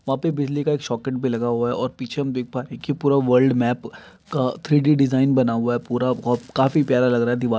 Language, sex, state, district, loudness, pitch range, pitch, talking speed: Maithili, male, Bihar, Samastipur, -21 LUFS, 120-140 Hz, 130 Hz, 285 wpm